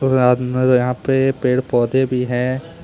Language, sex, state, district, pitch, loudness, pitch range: Hindi, male, Jharkhand, Deoghar, 125 Hz, -17 LUFS, 125-130 Hz